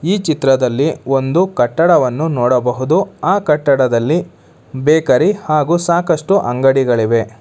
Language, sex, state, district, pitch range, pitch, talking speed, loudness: Kannada, male, Karnataka, Bangalore, 125-165 Hz, 140 Hz, 90 wpm, -14 LUFS